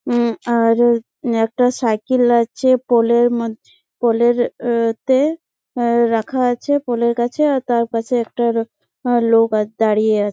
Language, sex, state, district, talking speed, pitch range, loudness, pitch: Bengali, female, West Bengal, Jalpaiguri, 135 wpm, 230-250 Hz, -17 LUFS, 235 Hz